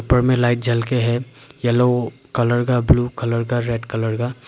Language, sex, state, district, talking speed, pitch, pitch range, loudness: Hindi, male, Arunachal Pradesh, Papum Pare, 200 wpm, 120 Hz, 120-125 Hz, -19 LUFS